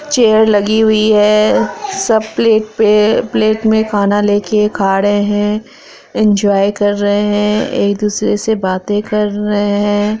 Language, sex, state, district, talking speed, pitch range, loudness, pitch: Hindi, female, Bihar, Araria, 145 wpm, 205-220 Hz, -13 LUFS, 210 Hz